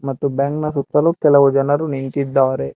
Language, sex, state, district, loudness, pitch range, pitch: Kannada, male, Karnataka, Bangalore, -17 LUFS, 135-145 Hz, 140 Hz